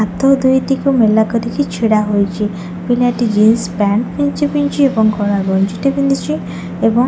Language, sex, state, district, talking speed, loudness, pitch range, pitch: Odia, female, Odisha, Khordha, 155 wpm, -14 LUFS, 200-270 Hz, 220 Hz